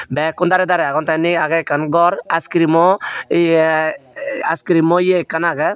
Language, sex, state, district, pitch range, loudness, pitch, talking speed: Chakma, male, Tripura, Unakoti, 160-180 Hz, -16 LUFS, 170 Hz, 175 wpm